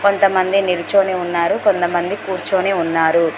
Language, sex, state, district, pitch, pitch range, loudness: Telugu, female, Telangana, Mahabubabad, 185 Hz, 170-195 Hz, -17 LUFS